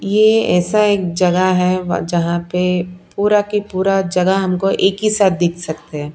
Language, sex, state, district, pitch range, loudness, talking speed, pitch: Hindi, female, Punjab, Pathankot, 175-200 Hz, -16 LUFS, 175 wpm, 185 Hz